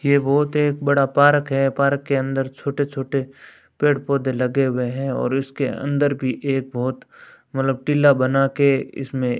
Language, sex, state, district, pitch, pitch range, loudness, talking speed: Hindi, male, Rajasthan, Bikaner, 135 Hz, 135-140 Hz, -20 LUFS, 180 wpm